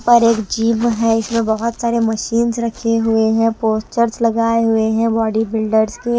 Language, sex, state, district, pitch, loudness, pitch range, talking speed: Hindi, female, Himachal Pradesh, Shimla, 225 Hz, -16 LUFS, 220-235 Hz, 185 wpm